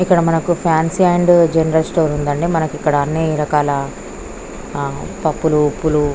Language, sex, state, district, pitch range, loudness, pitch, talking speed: Telugu, female, Andhra Pradesh, Krishna, 150-165 Hz, -16 LUFS, 160 Hz, 145 wpm